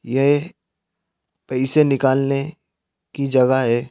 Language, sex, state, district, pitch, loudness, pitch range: Hindi, male, Madhya Pradesh, Bhopal, 135 Hz, -18 LUFS, 130-140 Hz